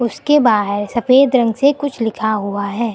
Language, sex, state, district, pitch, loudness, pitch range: Hindi, female, Uttar Pradesh, Lucknow, 230 Hz, -15 LUFS, 210-260 Hz